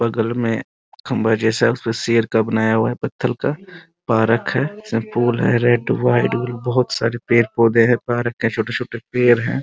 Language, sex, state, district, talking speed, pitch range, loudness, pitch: Hindi, male, Bihar, Muzaffarpur, 180 wpm, 115-125 Hz, -18 LUFS, 120 Hz